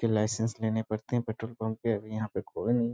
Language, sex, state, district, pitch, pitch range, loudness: Hindi, male, Bihar, East Champaran, 110 Hz, 110-115 Hz, -32 LUFS